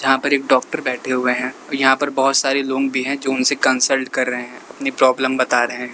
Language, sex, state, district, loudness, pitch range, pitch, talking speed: Hindi, male, Uttar Pradesh, Lalitpur, -18 LUFS, 125-135 Hz, 130 Hz, 265 wpm